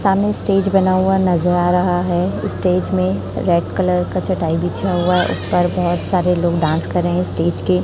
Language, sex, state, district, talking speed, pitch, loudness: Hindi, female, Chhattisgarh, Raipur, 205 wpm, 175 Hz, -17 LUFS